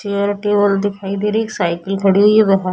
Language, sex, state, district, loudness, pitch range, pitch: Hindi, female, Bihar, Vaishali, -16 LUFS, 195-205 Hz, 200 Hz